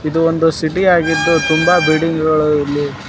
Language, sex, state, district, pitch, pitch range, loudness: Kannada, male, Karnataka, Koppal, 160 Hz, 155-165 Hz, -14 LUFS